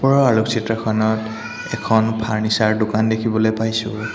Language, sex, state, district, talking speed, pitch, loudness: Assamese, male, Assam, Hailakandi, 115 wpm, 110 Hz, -19 LUFS